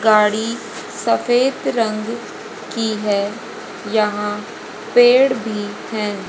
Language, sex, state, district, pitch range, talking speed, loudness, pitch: Hindi, female, Haryana, Rohtak, 210-230 Hz, 85 wpm, -18 LUFS, 220 Hz